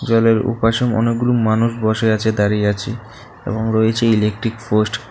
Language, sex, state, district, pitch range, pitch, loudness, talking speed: Bengali, male, Tripura, South Tripura, 110-115 Hz, 110 Hz, -17 LUFS, 165 wpm